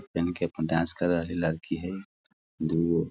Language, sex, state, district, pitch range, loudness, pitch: Hindi, male, Bihar, Sitamarhi, 80-85 Hz, -29 LUFS, 85 Hz